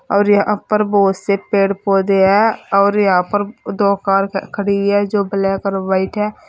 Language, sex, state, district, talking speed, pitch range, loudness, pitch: Hindi, female, Uttar Pradesh, Saharanpur, 185 wpm, 195-205 Hz, -15 LUFS, 200 Hz